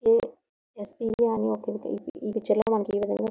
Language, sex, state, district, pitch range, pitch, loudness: Telugu, female, Andhra Pradesh, Visakhapatnam, 205-245 Hz, 220 Hz, -27 LUFS